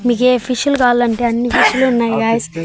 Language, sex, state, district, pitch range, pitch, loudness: Telugu, male, Andhra Pradesh, Annamaya, 230-250 Hz, 240 Hz, -14 LUFS